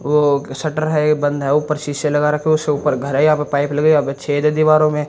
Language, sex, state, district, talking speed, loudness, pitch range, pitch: Hindi, male, Haryana, Jhajjar, 285 wpm, -17 LUFS, 145-155 Hz, 150 Hz